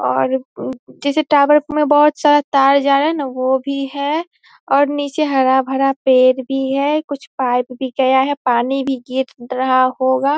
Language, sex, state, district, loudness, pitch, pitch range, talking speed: Hindi, female, Bihar, Vaishali, -16 LUFS, 270 Hz, 260-290 Hz, 185 wpm